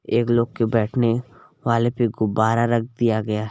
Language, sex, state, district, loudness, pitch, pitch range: Hindi, male, Chhattisgarh, Balrampur, -21 LUFS, 115 Hz, 110-120 Hz